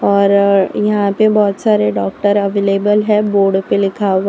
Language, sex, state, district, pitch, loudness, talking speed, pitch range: Hindi, female, Gujarat, Valsad, 200 Hz, -13 LUFS, 180 wpm, 195-210 Hz